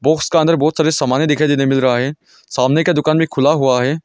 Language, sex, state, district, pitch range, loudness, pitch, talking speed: Hindi, male, Arunachal Pradesh, Longding, 135-160 Hz, -15 LUFS, 150 Hz, 250 wpm